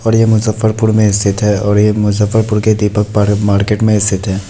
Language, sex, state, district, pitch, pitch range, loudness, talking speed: Hindi, male, Bihar, Muzaffarpur, 105 Hz, 105-110 Hz, -12 LUFS, 215 wpm